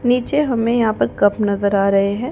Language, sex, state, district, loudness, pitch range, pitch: Hindi, female, Haryana, Jhajjar, -17 LUFS, 200-245 Hz, 215 Hz